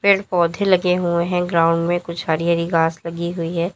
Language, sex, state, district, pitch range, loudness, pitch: Hindi, female, Uttar Pradesh, Lalitpur, 170-180 Hz, -19 LUFS, 170 Hz